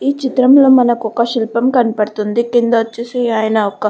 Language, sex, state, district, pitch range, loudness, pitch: Telugu, female, Andhra Pradesh, Guntur, 220-250 Hz, -13 LUFS, 235 Hz